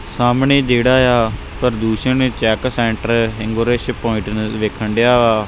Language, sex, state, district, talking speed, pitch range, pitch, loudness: Punjabi, male, Punjab, Kapurthala, 120 wpm, 110-125 Hz, 115 Hz, -16 LUFS